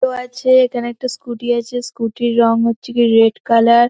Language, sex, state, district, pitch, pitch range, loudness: Bengali, female, West Bengal, North 24 Parganas, 240 Hz, 230-250 Hz, -16 LUFS